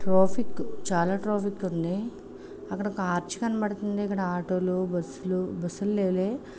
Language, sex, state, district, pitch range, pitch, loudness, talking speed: Telugu, female, Andhra Pradesh, Srikakulam, 180-205 Hz, 190 Hz, -29 LUFS, 135 wpm